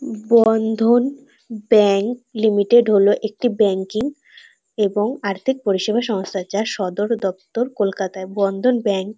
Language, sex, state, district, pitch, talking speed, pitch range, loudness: Bengali, female, West Bengal, North 24 Parganas, 215 Hz, 105 wpm, 200-235 Hz, -19 LUFS